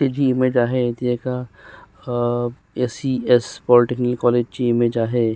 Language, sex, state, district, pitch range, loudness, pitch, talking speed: Marathi, male, Maharashtra, Solapur, 120-125 Hz, -20 LUFS, 120 Hz, 145 wpm